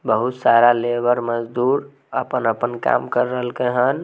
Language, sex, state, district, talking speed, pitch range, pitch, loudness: Maithili, male, Bihar, Samastipur, 150 wpm, 120-125 Hz, 125 Hz, -19 LUFS